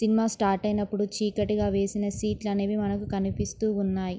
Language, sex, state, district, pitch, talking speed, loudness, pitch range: Telugu, female, Andhra Pradesh, Srikakulam, 205 Hz, 130 wpm, -27 LUFS, 200-210 Hz